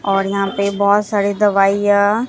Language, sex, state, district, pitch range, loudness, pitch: Hindi, female, Bihar, Katihar, 200-205 Hz, -15 LUFS, 200 Hz